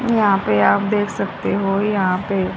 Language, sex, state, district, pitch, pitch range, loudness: Hindi, female, Haryana, Rohtak, 195 Hz, 185-205 Hz, -18 LUFS